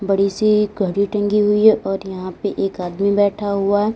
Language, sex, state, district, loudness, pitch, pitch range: Hindi, female, Uttar Pradesh, Lalitpur, -18 LUFS, 200 Hz, 195-210 Hz